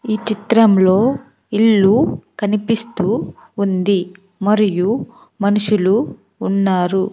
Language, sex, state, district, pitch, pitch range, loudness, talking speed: Telugu, female, Andhra Pradesh, Sri Satya Sai, 205 Hz, 190-220 Hz, -16 LUFS, 65 wpm